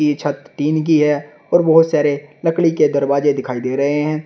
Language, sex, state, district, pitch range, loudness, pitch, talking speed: Hindi, male, Uttar Pradesh, Shamli, 145-155 Hz, -16 LUFS, 150 Hz, 210 wpm